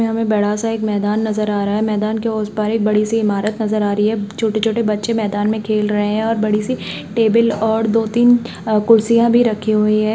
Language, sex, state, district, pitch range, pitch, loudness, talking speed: Hindi, female, Bihar, Kishanganj, 210-225 Hz, 215 Hz, -17 LUFS, 240 wpm